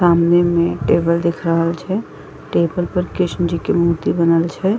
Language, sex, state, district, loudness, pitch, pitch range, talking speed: Maithili, female, Bihar, Madhepura, -17 LUFS, 170 Hz, 170-180 Hz, 175 wpm